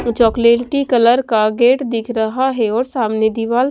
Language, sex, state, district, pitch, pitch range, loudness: Hindi, female, Chhattisgarh, Raipur, 235 Hz, 225-250 Hz, -15 LUFS